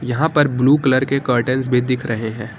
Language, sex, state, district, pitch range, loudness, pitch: Hindi, male, Uttar Pradesh, Lucknow, 120-135 Hz, -17 LUFS, 125 Hz